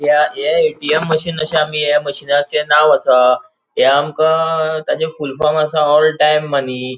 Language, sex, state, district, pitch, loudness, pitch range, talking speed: Konkani, male, Goa, North and South Goa, 150 Hz, -14 LUFS, 145-155 Hz, 165 wpm